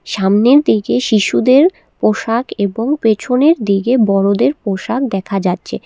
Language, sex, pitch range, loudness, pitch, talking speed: Bengali, female, 200-255 Hz, -14 LUFS, 225 Hz, 115 wpm